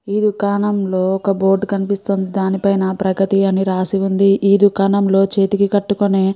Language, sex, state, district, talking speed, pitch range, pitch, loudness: Telugu, female, Andhra Pradesh, Guntur, 170 wpm, 195-200 Hz, 195 Hz, -16 LUFS